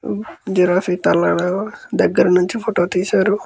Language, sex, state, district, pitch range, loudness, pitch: Telugu, male, Andhra Pradesh, Guntur, 180-205 Hz, -17 LUFS, 185 Hz